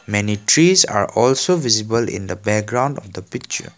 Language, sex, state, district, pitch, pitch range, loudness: English, male, Assam, Kamrup Metropolitan, 115 Hz, 105-135 Hz, -17 LUFS